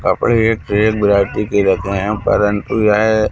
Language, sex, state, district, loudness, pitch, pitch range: Hindi, male, Madhya Pradesh, Katni, -15 LUFS, 105 Hz, 100-110 Hz